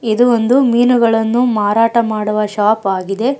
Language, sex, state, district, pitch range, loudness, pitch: Kannada, female, Karnataka, Bangalore, 210-240 Hz, -13 LUFS, 230 Hz